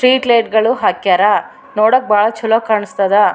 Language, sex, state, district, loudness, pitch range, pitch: Kannada, female, Karnataka, Raichur, -13 LUFS, 210-240 Hz, 220 Hz